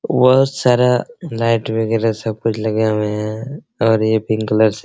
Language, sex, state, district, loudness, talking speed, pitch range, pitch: Hindi, male, Bihar, Araria, -17 LUFS, 185 wpm, 110-125 Hz, 115 Hz